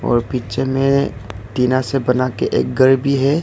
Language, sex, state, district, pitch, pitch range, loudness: Hindi, male, Arunachal Pradesh, Longding, 130 Hz, 125-135 Hz, -17 LUFS